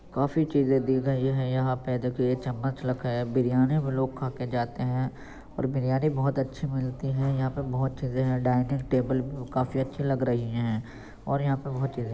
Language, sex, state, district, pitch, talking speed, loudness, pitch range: Hindi, male, Uttar Pradesh, Jyotiba Phule Nagar, 130 Hz, 215 wpm, -28 LUFS, 125-135 Hz